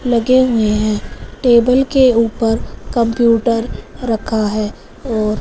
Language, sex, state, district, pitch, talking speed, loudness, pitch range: Hindi, female, Punjab, Fazilka, 230 Hz, 110 wpm, -15 LUFS, 220-250 Hz